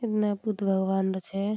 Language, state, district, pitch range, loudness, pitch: Surjapuri, Bihar, Kishanganj, 190-215 Hz, -28 LUFS, 200 Hz